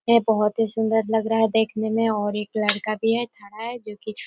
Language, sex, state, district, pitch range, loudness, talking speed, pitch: Hindi, female, Chhattisgarh, Korba, 210-225 Hz, -22 LUFS, 240 wpm, 220 Hz